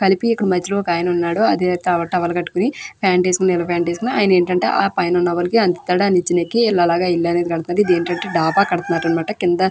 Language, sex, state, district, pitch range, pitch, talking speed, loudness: Telugu, female, Andhra Pradesh, Krishna, 175-190 Hz, 180 Hz, 255 wpm, -17 LUFS